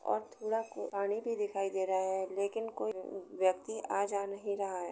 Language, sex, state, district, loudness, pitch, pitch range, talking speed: Hindi, female, Uttar Pradesh, Jalaun, -36 LUFS, 200 Hz, 190-205 Hz, 205 wpm